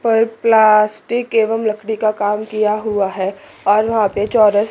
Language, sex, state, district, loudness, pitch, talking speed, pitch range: Hindi, female, Chandigarh, Chandigarh, -16 LUFS, 215 Hz, 165 wpm, 210-225 Hz